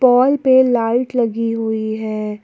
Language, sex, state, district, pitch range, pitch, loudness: Hindi, female, Jharkhand, Ranchi, 220-255 Hz, 230 Hz, -16 LUFS